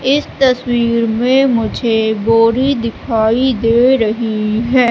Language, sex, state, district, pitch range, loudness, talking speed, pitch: Hindi, female, Madhya Pradesh, Katni, 225-255 Hz, -14 LUFS, 110 wpm, 235 Hz